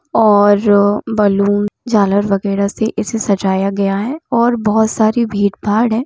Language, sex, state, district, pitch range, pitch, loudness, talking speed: Hindi, female, Bihar, Gopalganj, 200-225 Hz, 205 Hz, -14 LUFS, 140 wpm